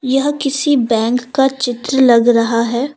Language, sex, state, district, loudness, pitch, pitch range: Hindi, female, Jharkhand, Deoghar, -14 LUFS, 255 Hz, 240-270 Hz